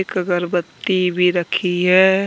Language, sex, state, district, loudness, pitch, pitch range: Hindi, male, Jharkhand, Deoghar, -17 LUFS, 180 Hz, 175-190 Hz